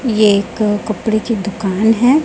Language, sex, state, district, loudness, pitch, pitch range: Hindi, female, Chhattisgarh, Raipur, -15 LUFS, 215 Hz, 205-230 Hz